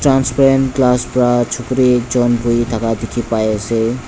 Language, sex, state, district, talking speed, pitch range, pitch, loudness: Nagamese, male, Nagaland, Dimapur, 145 wpm, 115-130 Hz, 120 Hz, -15 LUFS